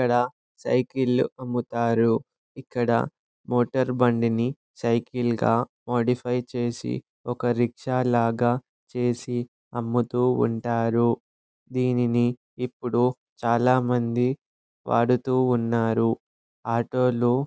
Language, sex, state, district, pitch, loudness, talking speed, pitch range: Telugu, male, Andhra Pradesh, Anantapur, 120 Hz, -25 LUFS, 80 wpm, 115-125 Hz